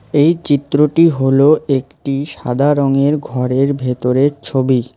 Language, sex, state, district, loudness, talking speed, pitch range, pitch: Bengali, male, West Bengal, Alipurduar, -14 LUFS, 110 wpm, 130-145 Hz, 140 Hz